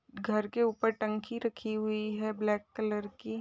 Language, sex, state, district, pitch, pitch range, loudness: Hindi, male, Chhattisgarh, Balrampur, 215 Hz, 210-225 Hz, -33 LUFS